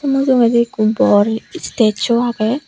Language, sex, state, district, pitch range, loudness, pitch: Chakma, female, Tripura, Unakoti, 215-250 Hz, -15 LUFS, 235 Hz